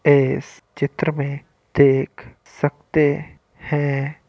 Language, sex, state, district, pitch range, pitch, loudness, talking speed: Hindi, male, Uttar Pradesh, Hamirpur, 135-150 Hz, 140 Hz, -21 LUFS, 85 wpm